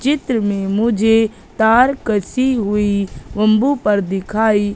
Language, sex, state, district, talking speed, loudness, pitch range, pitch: Hindi, female, Madhya Pradesh, Katni, 115 wpm, -16 LUFS, 205-235 Hz, 215 Hz